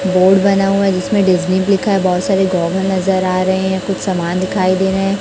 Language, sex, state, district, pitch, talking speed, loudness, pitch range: Hindi, male, Chhattisgarh, Raipur, 190 Hz, 175 wpm, -14 LUFS, 185-195 Hz